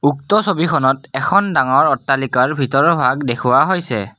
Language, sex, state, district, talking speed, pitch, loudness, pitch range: Assamese, male, Assam, Kamrup Metropolitan, 130 wpm, 135 Hz, -15 LUFS, 130-170 Hz